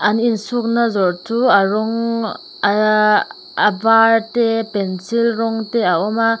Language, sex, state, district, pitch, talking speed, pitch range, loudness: Mizo, female, Mizoram, Aizawl, 225 Hz, 140 wpm, 210-230 Hz, -16 LUFS